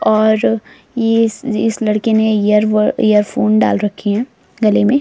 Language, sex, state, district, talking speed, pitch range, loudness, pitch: Hindi, female, Delhi, New Delhi, 155 wpm, 210-225 Hz, -14 LUFS, 215 Hz